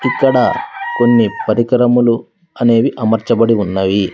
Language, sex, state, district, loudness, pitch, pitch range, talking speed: Telugu, male, Andhra Pradesh, Sri Satya Sai, -14 LUFS, 115 Hz, 110-120 Hz, 85 wpm